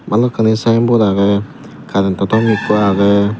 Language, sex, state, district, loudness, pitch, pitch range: Chakma, male, Tripura, Dhalai, -13 LUFS, 105 Hz, 100-110 Hz